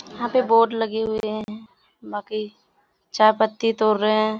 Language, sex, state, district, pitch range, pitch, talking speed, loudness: Hindi, female, Bihar, Kishanganj, 215-225 Hz, 215 Hz, 150 wpm, -21 LUFS